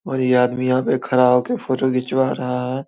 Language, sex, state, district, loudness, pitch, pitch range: Hindi, male, Bihar, Samastipur, -19 LUFS, 130 Hz, 125-130 Hz